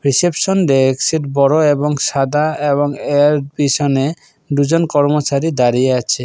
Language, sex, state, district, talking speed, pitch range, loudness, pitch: Bengali, male, Assam, Kamrup Metropolitan, 125 wpm, 140-150 Hz, -15 LUFS, 145 Hz